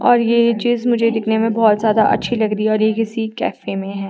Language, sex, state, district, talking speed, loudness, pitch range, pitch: Hindi, female, Himachal Pradesh, Shimla, 265 wpm, -17 LUFS, 215-235 Hz, 220 Hz